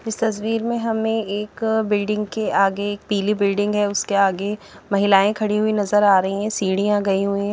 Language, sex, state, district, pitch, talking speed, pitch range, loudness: Hindi, female, Haryana, Charkhi Dadri, 205 Hz, 200 wpm, 200-215 Hz, -20 LUFS